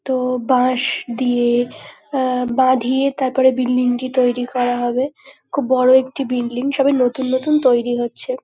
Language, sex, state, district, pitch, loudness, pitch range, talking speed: Bengali, female, West Bengal, North 24 Parganas, 255 Hz, -18 LUFS, 245-265 Hz, 140 wpm